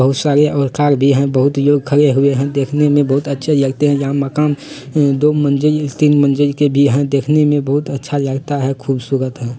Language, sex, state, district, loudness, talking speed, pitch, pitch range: Hindi, male, Bihar, Bhagalpur, -14 LUFS, 220 wpm, 140 Hz, 135-145 Hz